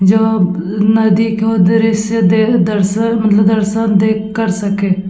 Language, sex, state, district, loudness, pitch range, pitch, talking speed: Hindi, female, Bihar, Vaishali, -13 LUFS, 200-220 Hz, 210 Hz, 140 wpm